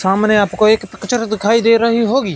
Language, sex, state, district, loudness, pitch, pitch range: Hindi, male, Punjab, Fazilka, -14 LUFS, 215 Hz, 205-230 Hz